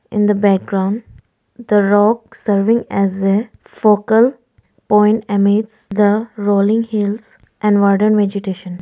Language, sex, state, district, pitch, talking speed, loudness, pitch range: English, female, Arunachal Pradesh, Lower Dibang Valley, 210 Hz, 115 wpm, -15 LUFS, 200-220 Hz